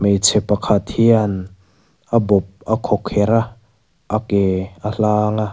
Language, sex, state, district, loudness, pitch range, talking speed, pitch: Mizo, male, Mizoram, Aizawl, -18 LUFS, 100-110 Hz, 140 wpm, 105 Hz